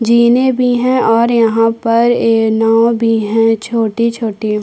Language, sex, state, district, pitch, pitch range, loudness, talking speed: Hindi, female, Chhattisgarh, Kabirdham, 230 Hz, 225-235 Hz, -12 LUFS, 170 wpm